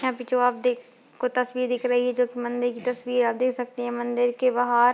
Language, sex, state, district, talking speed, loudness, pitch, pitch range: Hindi, female, Bihar, Darbhanga, 290 wpm, -25 LUFS, 245 Hz, 245-250 Hz